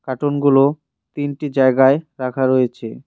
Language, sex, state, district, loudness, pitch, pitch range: Bengali, male, West Bengal, Cooch Behar, -17 LUFS, 135 Hz, 130-145 Hz